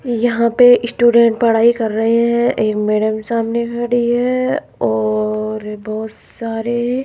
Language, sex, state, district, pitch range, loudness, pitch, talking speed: Hindi, female, Rajasthan, Jaipur, 215-240 Hz, -15 LUFS, 235 Hz, 130 wpm